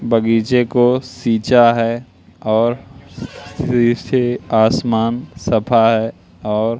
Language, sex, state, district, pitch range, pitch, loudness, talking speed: Hindi, male, Madhya Pradesh, Katni, 110-120 Hz, 115 Hz, -16 LUFS, 95 wpm